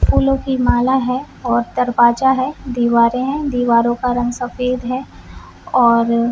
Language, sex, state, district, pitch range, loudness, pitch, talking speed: Hindi, female, Jharkhand, Jamtara, 235-260 Hz, -16 LUFS, 250 Hz, 135 wpm